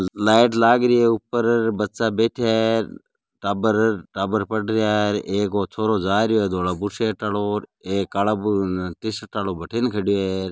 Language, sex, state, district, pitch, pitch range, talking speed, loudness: Marwari, male, Rajasthan, Nagaur, 105 Hz, 100-110 Hz, 105 wpm, -21 LUFS